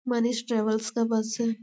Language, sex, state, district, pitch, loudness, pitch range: Hindi, male, Chhattisgarh, Bastar, 230 Hz, -27 LUFS, 220-235 Hz